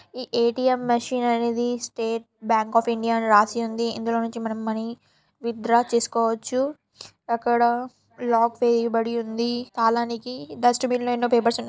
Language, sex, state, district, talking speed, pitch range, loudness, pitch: Telugu, female, Telangana, Nalgonda, 140 wpm, 230-245 Hz, -23 LUFS, 235 Hz